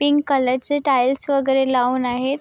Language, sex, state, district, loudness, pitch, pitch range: Marathi, female, Maharashtra, Chandrapur, -19 LUFS, 270 Hz, 255-280 Hz